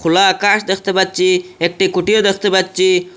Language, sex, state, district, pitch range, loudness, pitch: Bengali, male, Assam, Hailakandi, 180-195 Hz, -14 LUFS, 190 Hz